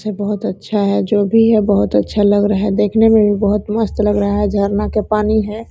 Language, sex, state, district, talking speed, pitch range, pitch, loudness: Hindi, female, Jharkhand, Sahebganj, 250 wpm, 205-215 Hz, 210 Hz, -15 LUFS